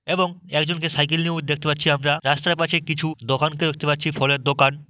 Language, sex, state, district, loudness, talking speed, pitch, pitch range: Bengali, male, West Bengal, Malda, -21 LUFS, 185 wpm, 150 Hz, 145-165 Hz